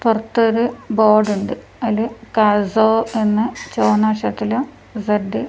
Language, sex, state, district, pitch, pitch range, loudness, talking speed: Malayalam, female, Kerala, Kasaragod, 220 Hz, 210-230 Hz, -18 LUFS, 100 wpm